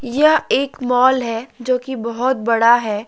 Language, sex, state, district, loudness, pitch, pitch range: Hindi, male, Jharkhand, Deoghar, -17 LUFS, 250 Hz, 235-260 Hz